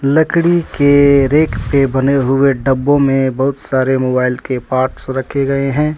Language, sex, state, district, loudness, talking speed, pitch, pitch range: Hindi, male, Jharkhand, Deoghar, -13 LUFS, 160 wpm, 135 Hz, 130-145 Hz